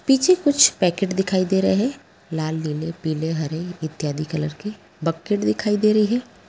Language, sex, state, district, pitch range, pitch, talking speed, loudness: Hindi, female, Bihar, Gaya, 155-210 Hz, 180 Hz, 185 wpm, -21 LUFS